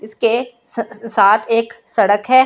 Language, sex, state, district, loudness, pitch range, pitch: Hindi, female, Delhi, New Delhi, -16 LUFS, 215-240 Hz, 230 Hz